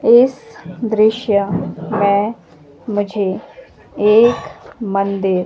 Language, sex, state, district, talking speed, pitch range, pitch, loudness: Hindi, female, Himachal Pradesh, Shimla, 65 wpm, 195-225 Hz, 205 Hz, -16 LUFS